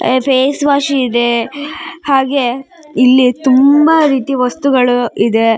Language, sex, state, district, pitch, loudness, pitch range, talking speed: Kannada, female, Karnataka, Shimoga, 265 Hz, -12 LUFS, 250-285 Hz, 120 wpm